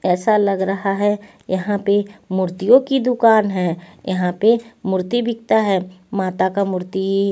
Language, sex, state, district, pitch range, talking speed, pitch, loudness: Hindi, female, Punjab, Pathankot, 185-215 Hz, 145 wpm, 195 Hz, -18 LUFS